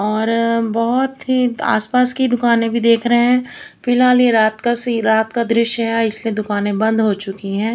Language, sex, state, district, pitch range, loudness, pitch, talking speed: Hindi, female, Chandigarh, Chandigarh, 220-245 Hz, -16 LUFS, 230 Hz, 195 wpm